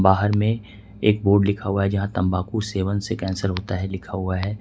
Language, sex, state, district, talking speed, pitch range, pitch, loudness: Hindi, male, Jharkhand, Ranchi, 220 wpm, 95-105 Hz, 100 Hz, -23 LUFS